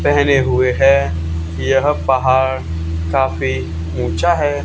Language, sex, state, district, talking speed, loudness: Hindi, male, Haryana, Charkhi Dadri, 105 wpm, -16 LUFS